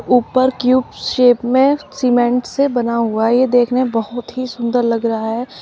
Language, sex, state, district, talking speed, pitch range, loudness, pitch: Hindi, female, Uttar Pradesh, Shamli, 190 wpm, 235-255 Hz, -16 LUFS, 245 Hz